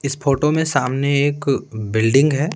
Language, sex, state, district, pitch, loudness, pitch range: Hindi, male, Bihar, Patna, 140 Hz, -18 LUFS, 135-145 Hz